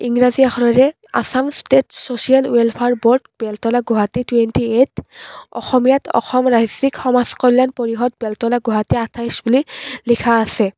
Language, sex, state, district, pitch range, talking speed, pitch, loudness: Assamese, female, Assam, Kamrup Metropolitan, 230-255 Hz, 120 wpm, 245 Hz, -16 LUFS